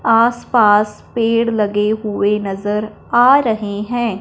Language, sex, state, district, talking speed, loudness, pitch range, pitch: Hindi, female, Punjab, Fazilka, 130 wpm, -16 LUFS, 210-230 Hz, 215 Hz